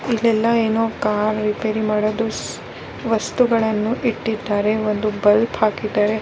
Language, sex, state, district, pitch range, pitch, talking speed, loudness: Kannada, female, Karnataka, Bellary, 210-225 Hz, 220 Hz, 115 wpm, -19 LUFS